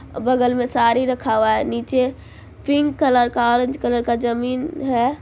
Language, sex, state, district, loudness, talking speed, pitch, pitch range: Maithili, female, Bihar, Supaul, -19 LUFS, 170 wpm, 245 Hz, 240-260 Hz